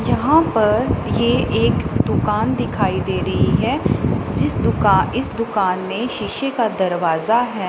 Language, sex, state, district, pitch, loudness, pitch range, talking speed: Hindi, female, Punjab, Pathankot, 220 Hz, -18 LUFS, 190-240 Hz, 140 wpm